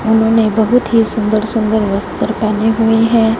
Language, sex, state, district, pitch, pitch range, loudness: Hindi, female, Punjab, Fazilka, 220 Hz, 215-225 Hz, -13 LUFS